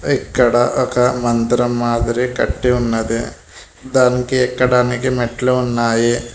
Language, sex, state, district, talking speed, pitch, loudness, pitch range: Telugu, male, Telangana, Hyderabad, 95 wpm, 120 Hz, -16 LUFS, 120-125 Hz